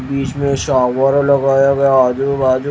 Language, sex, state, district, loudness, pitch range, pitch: Hindi, male, Odisha, Malkangiri, -14 LUFS, 130-140 Hz, 135 Hz